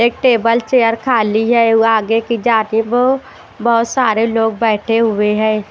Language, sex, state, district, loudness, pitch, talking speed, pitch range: Hindi, female, Chhattisgarh, Raipur, -14 LUFS, 230 Hz, 170 wpm, 220-235 Hz